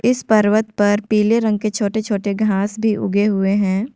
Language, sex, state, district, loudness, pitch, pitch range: Hindi, female, Jharkhand, Ranchi, -17 LUFS, 210 Hz, 205-220 Hz